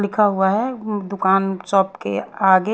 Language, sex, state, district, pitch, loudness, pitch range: Hindi, female, Haryana, Rohtak, 195 Hz, -19 LUFS, 190-210 Hz